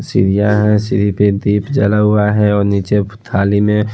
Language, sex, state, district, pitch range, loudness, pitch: Hindi, male, Odisha, Khordha, 100-105 Hz, -14 LUFS, 105 Hz